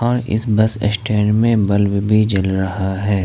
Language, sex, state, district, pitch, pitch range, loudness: Hindi, male, Jharkhand, Ranchi, 105 Hz, 100-110 Hz, -17 LUFS